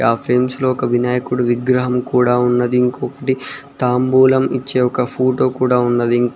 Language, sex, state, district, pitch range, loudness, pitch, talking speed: Telugu, male, Telangana, Mahabubabad, 125-130 Hz, -16 LUFS, 125 Hz, 160 wpm